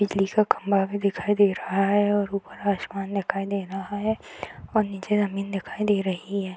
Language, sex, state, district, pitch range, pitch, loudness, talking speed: Hindi, female, Bihar, Gopalganj, 195-205 Hz, 200 Hz, -25 LUFS, 210 wpm